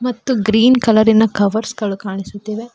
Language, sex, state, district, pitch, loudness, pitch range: Kannada, female, Karnataka, Koppal, 220 Hz, -15 LUFS, 205-230 Hz